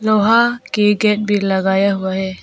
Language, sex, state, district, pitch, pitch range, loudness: Hindi, female, Arunachal Pradesh, Papum Pare, 210 Hz, 190-215 Hz, -15 LUFS